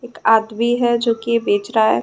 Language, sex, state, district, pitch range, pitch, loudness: Hindi, female, Bihar, Gaya, 220-240 Hz, 230 Hz, -17 LUFS